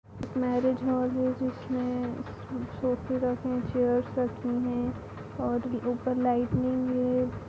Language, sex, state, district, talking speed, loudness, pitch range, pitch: Hindi, female, Uttar Pradesh, Jalaun, 120 wpm, -29 LUFS, 245-255 Hz, 250 Hz